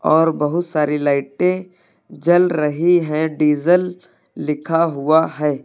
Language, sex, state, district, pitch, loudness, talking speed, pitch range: Hindi, male, Uttar Pradesh, Lucknow, 160 Hz, -17 LUFS, 125 wpm, 150-175 Hz